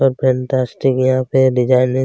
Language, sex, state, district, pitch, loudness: Hindi, male, Chhattisgarh, Kabirdham, 130 Hz, -15 LUFS